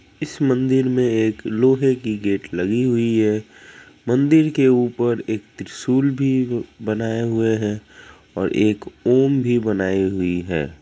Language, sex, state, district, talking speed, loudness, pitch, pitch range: Hindi, male, Bihar, Kishanganj, 145 wpm, -19 LUFS, 115 Hz, 105-130 Hz